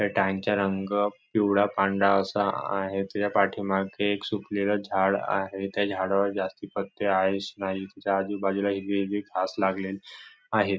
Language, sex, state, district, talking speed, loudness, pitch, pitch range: Marathi, male, Maharashtra, Chandrapur, 150 wpm, -27 LUFS, 100 Hz, 95-100 Hz